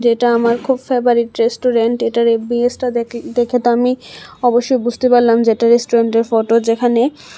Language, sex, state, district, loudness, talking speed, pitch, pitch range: Bengali, female, Tripura, West Tripura, -15 LUFS, 155 wpm, 240 Hz, 230-245 Hz